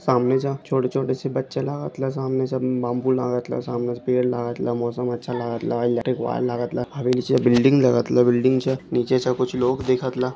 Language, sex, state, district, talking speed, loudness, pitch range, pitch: Marathi, male, Maharashtra, Sindhudurg, 160 wpm, -22 LUFS, 120-130 Hz, 125 Hz